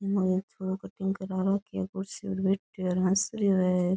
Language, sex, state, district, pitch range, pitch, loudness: Rajasthani, female, Rajasthan, Nagaur, 190-195 Hz, 190 Hz, -29 LUFS